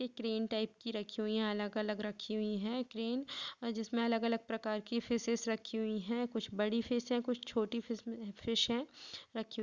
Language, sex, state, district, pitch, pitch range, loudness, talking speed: Hindi, female, Chhattisgarh, Kabirdham, 225 Hz, 215-235 Hz, -38 LUFS, 180 wpm